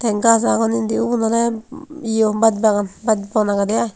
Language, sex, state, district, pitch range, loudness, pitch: Chakma, female, Tripura, Unakoti, 215-230 Hz, -17 LUFS, 225 Hz